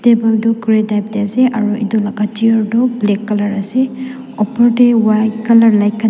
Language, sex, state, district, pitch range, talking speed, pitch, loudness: Nagamese, female, Nagaland, Dimapur, 210-235 Hz, 185 wpm, 220 Hz, -13 LUFS